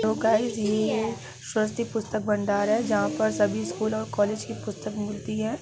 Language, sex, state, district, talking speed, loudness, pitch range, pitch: Hindi, female, Bihar, Gaya, 180 wpm, -26 LUFS, 205-220 Hz, 215 Hz